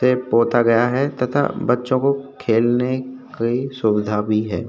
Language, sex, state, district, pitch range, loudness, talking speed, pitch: Hindi, male, Uttar Pradesh, Hamirpur, 115-130 Hz, -19 LUFS, 155 wpm, 125 Hz